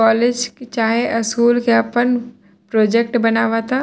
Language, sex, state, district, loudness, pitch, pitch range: Bhojpuri, female, Bihar, Saran, -17 LUFS, 235 Hz, 225-240 Hz